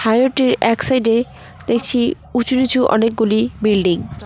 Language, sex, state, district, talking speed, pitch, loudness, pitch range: Bengali, female, West Bengal, Cooch Behar, 170 wpm, 235 Hz, -16 LUFS, 220-250 Hz